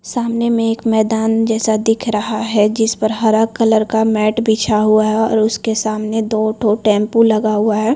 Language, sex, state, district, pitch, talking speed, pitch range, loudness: Hindi, female, Chhattisgarh, Korba, 220 Hz, 195 wpm, 215-225 Hz, -15 LUFS